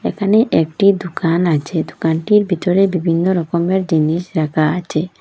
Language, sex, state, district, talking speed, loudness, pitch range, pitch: Bengali, female, Assam, Hailakandi, 125 wpm, -16 LUFS, 160-190 Hz, 175 Hz